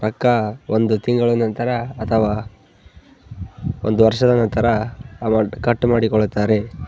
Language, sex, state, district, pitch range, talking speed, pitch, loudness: Kannada, male, Karnataka, Bellary, 105-120 Hz, 105 wpm, 110 Hz, -18 LUFS